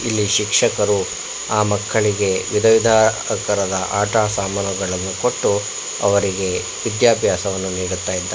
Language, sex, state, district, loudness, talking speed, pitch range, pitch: Kannada, male, Karnataka, Bangalore, -18 LUFS, 95 wpm, 95-105 Hz, 100 Hz